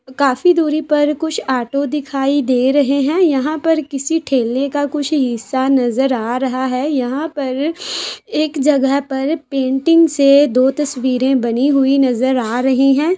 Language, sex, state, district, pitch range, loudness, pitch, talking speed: Hindi, female, Uttar Pradesh, Jalaun, 260-295 Hz, -16 LUFS, 275 Hz, 160 wpm